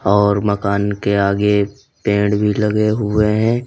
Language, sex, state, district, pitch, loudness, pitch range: Hindi, male, Uttar Pradesh, Lalitpur, 105 Hz, -16 LUFS, 100-105 Hz